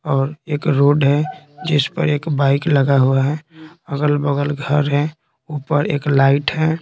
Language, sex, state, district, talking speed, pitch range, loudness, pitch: Hindi, male, Bihar, Patna, 160 wpm, 140-155 Hz, -17 LUFS, 145 Hz